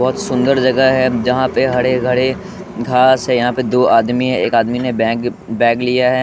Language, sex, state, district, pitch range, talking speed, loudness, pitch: Hindi, male, Bihar, West Champaran, 120-130 Hz, 210 wpm, -14 LUFS, 125 Hz